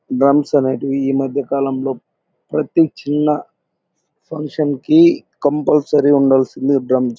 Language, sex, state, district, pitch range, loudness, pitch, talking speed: Telugu, male, Andhra Pradesh, Anantapur, 135-150 Hz, -16 LUFS, 140 Hz, 115 wpm